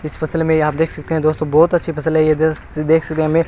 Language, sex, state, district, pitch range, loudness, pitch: Hindi, male, Rajasthan, Bikaner, 155-160 Hz, -16 LUFS, 160 Hz